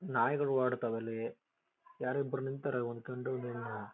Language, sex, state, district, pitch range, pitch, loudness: Kannada, male, Karnataka, Chamarajanagar, 115-135 Hz, 125 Hz, -36 LUFS